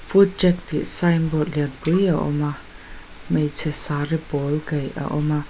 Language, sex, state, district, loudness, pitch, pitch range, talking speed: Mizo, female, Mizoram, Aizawl, -19 LUFS, 150 Hz, 145-170 Hz, 165 wpm